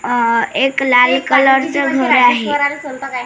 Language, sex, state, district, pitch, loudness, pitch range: Marathi, female, Maharashtra, Washim, 270 Hz, -13 LUFS, 245-275 Hz